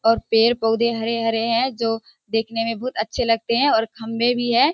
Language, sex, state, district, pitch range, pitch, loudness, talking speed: Hindi, female, Bihar, Kishanganj, 225-235 Hz, 230 Hz, -21 LUFS, 215 wpm